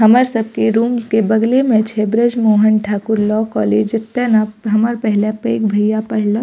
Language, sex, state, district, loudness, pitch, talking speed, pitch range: Maithili, female, Bihar, Purnia, -15 LUFS, 220 Hz, 185 wpm, 215-230 Hz